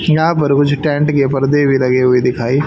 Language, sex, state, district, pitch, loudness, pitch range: Hindi, male, Haryana, Rohtak, 140 Hz, -13 LUFS, 130-145 Hz